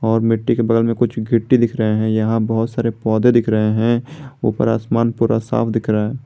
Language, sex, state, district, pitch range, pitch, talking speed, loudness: Hindi, male, Jharkhand, Garhwa, 110-120 Hz, 115 Hz, 230 wpm, -17 LUFS